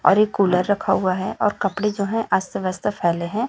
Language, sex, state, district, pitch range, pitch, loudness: Hindi, female, Chhattisgarh, Raipur, 185-210 Hz, 200 Hz, -21 LUFS